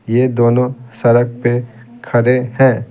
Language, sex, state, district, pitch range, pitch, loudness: Hindi, male, Bihar, Patna, 120-125 Hz, 120 Hz, -14 LUFS